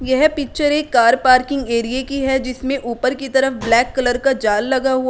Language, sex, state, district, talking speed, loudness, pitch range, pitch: Hindi, female, Uttar Pradesh, Shamli, 225 wpm, -17 LUFS, 245-270 Hz, 260 Hz